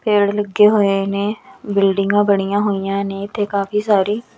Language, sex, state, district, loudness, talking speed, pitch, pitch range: Punjabi, female, Punjab, Kapurthala, -17 LUFS, 165 wpm, 205 Hz, 200-210 Hz